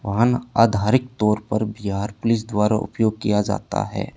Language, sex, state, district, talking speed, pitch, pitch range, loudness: Hindi, male, Haryana, Charkhi Dadri, 160 wpm, 105 Hz, 105-115 Hz, -21 LUFS